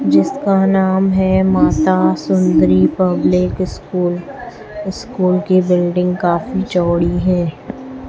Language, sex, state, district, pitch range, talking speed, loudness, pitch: Hindi, female, Chhattisgarh, Raipur, 175-195 Hz, 95 wpm, -15 LUFS, 185 Hz